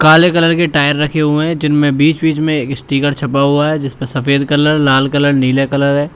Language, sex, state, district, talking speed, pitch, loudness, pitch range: Hindi, male, Uttar Pradesh, Shamli, 225 wpm, 145 Hz, -13 LUFS, 140-155 Hz